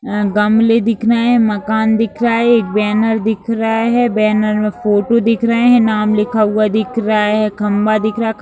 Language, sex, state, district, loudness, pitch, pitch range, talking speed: Hindi, female, Bihar, Madhepura, -14 LUFS, 220 Hz, 210-230 Hz, 205 wpm